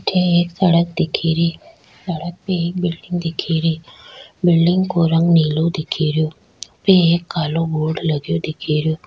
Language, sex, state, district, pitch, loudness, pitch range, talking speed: Rajasthani, female, Rajasthan, Churu, 165 Hz, -18 LUFS, 160-175 Hz, 150 wpm